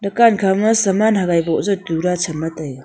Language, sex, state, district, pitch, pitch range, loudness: Wancho, female, Arunachal Pradesh, Longding, 190 Hz, 165-205 Hz, -17 LUFS